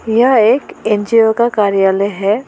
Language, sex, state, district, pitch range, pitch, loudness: Hindi, female, West Bengal, Alipurduar, 200-230 Hz, 215 Hz, -13 LUFS